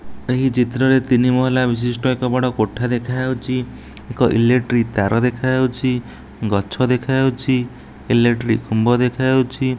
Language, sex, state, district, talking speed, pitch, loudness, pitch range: Odia, male, Odisha, Nuapada, 140 wpm, 125 Hz, -18 LUFS, 120-130 Hz